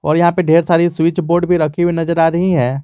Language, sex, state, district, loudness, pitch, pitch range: Hindi, male, Jharkhand, Garhwa, -14 LUFS, 170 Hz, 165-175 Hz